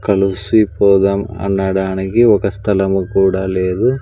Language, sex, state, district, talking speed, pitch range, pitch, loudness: Telugu, male, Andhra Pradesh, Sri Satya Sai, 105 wpm, 95-100 Hz, 95 Hz, -15 LUFS